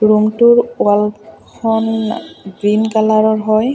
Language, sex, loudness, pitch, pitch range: Assamese, female, -14 LUFS, 215 Hz, 215-225 Hz